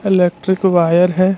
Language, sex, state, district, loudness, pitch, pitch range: Hindi, male, Jharkhand, Ranchi, -14 LUFS, 185 Hz, 175-190 Hz